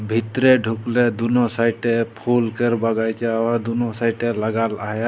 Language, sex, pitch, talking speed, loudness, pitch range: Sadri, male, 115 Hz, 140 wpm, -20 LUFS, 115-120 Hz